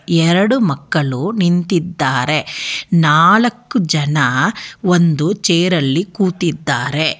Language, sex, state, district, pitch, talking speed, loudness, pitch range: Kannada, female, Karnataka, Bangalore, 170 Hz, 65 wpm, -15 LUFS, 155-190 Hz